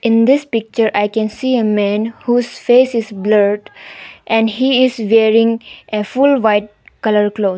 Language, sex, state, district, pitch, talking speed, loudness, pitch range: English, female, Arunachal Pradesh, Longding, 225 Hz, 165 wpm, -14 LUFS, 210-245 Hz